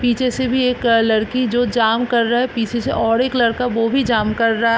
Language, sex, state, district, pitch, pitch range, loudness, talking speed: Hindi, female, Bihar, East Champaran, 235 Hz, 230-250 Hz, -17 LUFS, 265 wpm